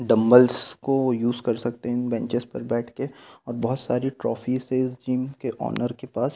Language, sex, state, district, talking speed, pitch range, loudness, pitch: Hindi, male, Delhi, New Delhi, 210 wpm, 120-130 Hz, -24 LUFS, 125 Hz